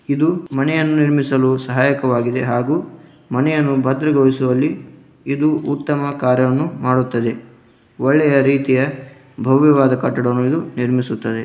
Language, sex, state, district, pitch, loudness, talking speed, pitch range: Kannada, male, Karnataka, Dharwad, 135 Hz, -17 LUFS, 90 wpm, 125-145 Hz